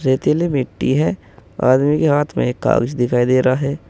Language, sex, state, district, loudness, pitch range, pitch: Hindi, male, Uttar Pradesh, Saharanpur, -17 LUFS, 120-140 Hz, 130 Hz